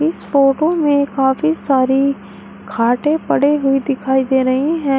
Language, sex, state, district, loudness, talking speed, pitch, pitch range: Hindi, female, Uttar Pradesh, Shamli, -15 LUFS, 145 wpm, 270 Hz, 265-295 Hz